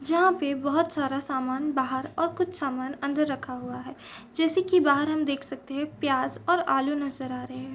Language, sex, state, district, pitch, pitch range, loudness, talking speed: Hindi, female, Bihar, East Champaran, 280 Hz, 260-310 Hz, -27 LUFS, 210 wpm